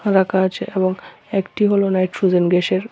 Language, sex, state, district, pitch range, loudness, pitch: Bengali, male, Tripura, West Tripura, 185-200 Hz, -18 LUFS, 190 Hz